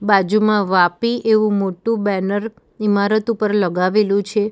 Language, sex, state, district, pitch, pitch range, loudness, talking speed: Gujarati, female, Gujarat, Valsad, 205 Hz, 200-215 Hz, -17 LUFS, 120 wpm